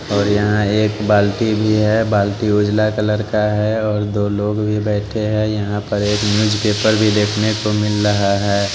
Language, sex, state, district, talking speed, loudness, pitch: Hindi, male, Bihar, West Champaran, 190 wpm, -16 LUFS, 105 Hz